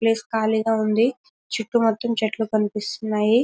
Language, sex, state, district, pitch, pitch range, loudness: Telugu, female, Telangana, Karimnagar, 225 Hz, 220-230 Hz, -22 LUFS